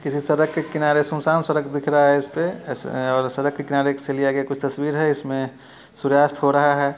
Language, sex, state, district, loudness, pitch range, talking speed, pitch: Hindi, male, Bihar, Muzaffarpur, -21 LUFS, 140-150 Hz, 230 wpm, 145 Hz